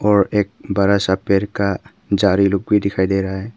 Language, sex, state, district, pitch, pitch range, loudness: Hindi, male, Arunachal Pradesh, Papum Pare, 100 Hz, 95-100 Hz, -18 LUFS